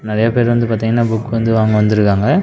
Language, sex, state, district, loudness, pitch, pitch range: Tamil, male, Tamil Nadu, Namakkal, -14 LUFS, 115 Hz, 110-120 Hz